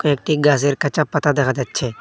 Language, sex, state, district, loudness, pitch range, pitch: Bengali, male, Assam, Hailakandi, -18 LUFS, 135-150 Hz, 145 Hz